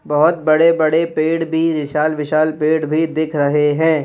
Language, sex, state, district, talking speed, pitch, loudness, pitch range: Hindi, male, Madhya Pradesh, Bhopal, 180 wpm, 155 Hz, -16 LUFS, 150-160 Hz